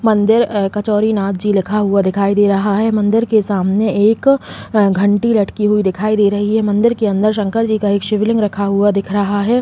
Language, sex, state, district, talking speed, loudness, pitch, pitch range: Hindi, female, Uttar Pradesh, Muzaffarnagar, 220 wpm, -14 LUFS, 210 Hz, 200-215 Hz